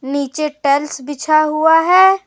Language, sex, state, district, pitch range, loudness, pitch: Hindi, female, Jharkhand, Deoghar, 285-320 Hz, -14 LUFS, 305 Hz